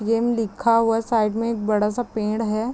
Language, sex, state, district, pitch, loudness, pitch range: Hindi, female, Chhattisgarh, Raigarh, 225 Hz, -22 LUFS, 215-230 Hz